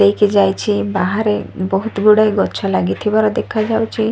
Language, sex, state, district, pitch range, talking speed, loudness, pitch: Odia, female, Odisha, Sambalpur, 200-215 Hz, 115 wpm, -16 LUFS, 210 Hz